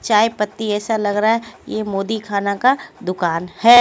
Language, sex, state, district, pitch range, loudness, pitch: Hindi, female, Haryana, Jhajjar, 200-225 Hz, -19 LUFS, 210 Hz